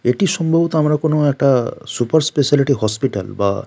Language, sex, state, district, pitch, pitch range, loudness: Bengali, male, West Bengal, Paschim Medinipur, 145 Hz, 120-155 Hz, -17 LUFS